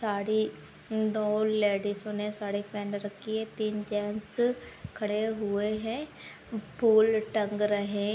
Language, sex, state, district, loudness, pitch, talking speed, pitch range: Hindi, female, Maharashtra, Pune, -30 LUFS, 210 Hz, 125 wpm, 205-220 Hz